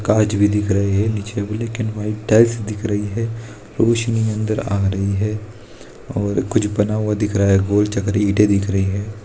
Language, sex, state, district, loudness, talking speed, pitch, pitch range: Hindi, male, Bihar, Saharsa, -19 LUFS, 200 wpm, 105 Hz, 100-110 Hz